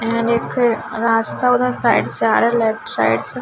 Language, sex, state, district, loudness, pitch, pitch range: Hindi, female, Chhattisgarh, Raipur, -17 LUFS, 235 Hz, 225-245 Hz